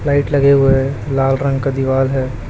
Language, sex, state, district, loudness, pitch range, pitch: Hindi, male, Chhattisgarh, Raipur, -15 LUFS, 135-140 Hz, 135 Hz